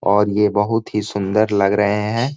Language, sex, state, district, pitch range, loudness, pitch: Hindi, male, Jharkhand, Sahebganj, 100-110 Hz, -18 LUFS, 105 Hz